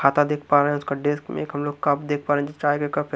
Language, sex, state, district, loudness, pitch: Hindi, male, Haryana, Rohtak, -23 LUFS, 145 Hz